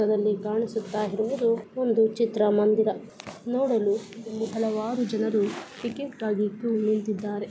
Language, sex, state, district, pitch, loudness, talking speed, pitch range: Kannada, female, Karnataka, Bijapur, 220 Hz, -26 LUFS, 95 wpm, 210-230 Hz